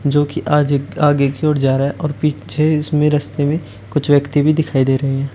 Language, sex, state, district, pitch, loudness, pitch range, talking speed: Hindi, male, Uttar Pradesh, Shamli, 145 Hz, -16 LUFS, 140-150 Hz, 235 wpm